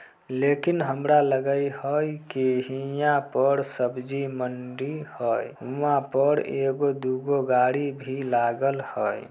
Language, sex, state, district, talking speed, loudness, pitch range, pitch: Maithili, male, Bihar, Samastipur, 110 wpm, -25 LUFS, 130-140 Hz, 135 Hz